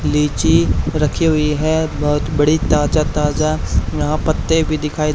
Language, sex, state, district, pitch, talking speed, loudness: Hindi, male, Haryana, Charkhi Dadri, 150 Hz, 140 wpm, -17 LUFS